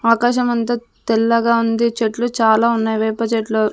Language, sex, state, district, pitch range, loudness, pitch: Telugu, female, Andhra Pradesh, Sri Satya Sai, 225-235 Hz, -17 LUFS, 230 Hz